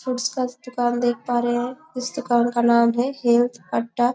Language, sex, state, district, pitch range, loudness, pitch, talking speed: Hindi, female, Chhattisgarh, Bastar, 240-250 Hz, -22 LUFS, 245 Hz, 190 wpm